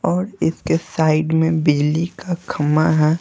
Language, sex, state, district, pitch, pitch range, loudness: Hindi, male, Bihar, Patna, 160 Hz, 155-170 Hz, -18 LUFS